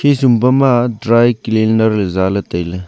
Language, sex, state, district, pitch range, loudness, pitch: Wancho, male, Arunachal Pradesh, Longding, 100-120 Hz, -13 LUFS, 110 Hz